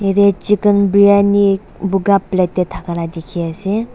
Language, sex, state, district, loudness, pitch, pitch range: Nagamese, female, Nagaland, Dimapur, -15 LUFS, 195 Hz, 180-200 Hz